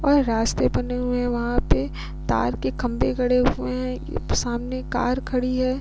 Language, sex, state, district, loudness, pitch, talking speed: Hindi, female, Bihar, Vaishali, -24 LUFS, 245 Hz, 185 wpm